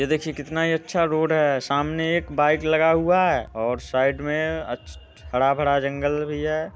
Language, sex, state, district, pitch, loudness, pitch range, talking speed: Hindi, male, Bihar, Muzaffarpur, 150 Hz, -22 LUFS, 140-160 Hz, 195 wpm